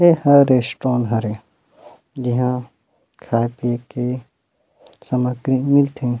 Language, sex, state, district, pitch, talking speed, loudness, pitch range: Chhattisgarhi, male, Chhattisgarh, Rajnandgaon, 125 Hz, 95 wpm, -19 LUFS, 120-135 Hz